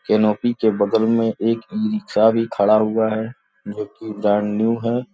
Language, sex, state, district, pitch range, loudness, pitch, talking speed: Hindi, male, Uttar Pradesh, Gorakhpur, 110-115 Hz, -19 LUFS, 110 Hz, 150 wpm